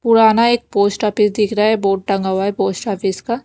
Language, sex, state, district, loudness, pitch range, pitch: Hindi, female, Maharashtra, Mumbai Suburban, -16 LUFS, 195-225 Hz, 210 Hz